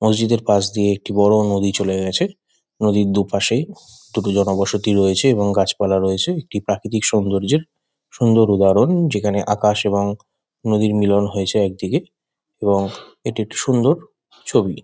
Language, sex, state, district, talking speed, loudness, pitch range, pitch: Bengali, male, West Bengal, Kolkata, 135 wpm, -18 LUFS, 100-110 Hz, 105 Hz